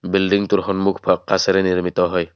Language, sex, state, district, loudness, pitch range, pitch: Assamese, male, Assam, Kamrup Metropolitan, -18 LUFS, 90-100 Hz, 95 Hz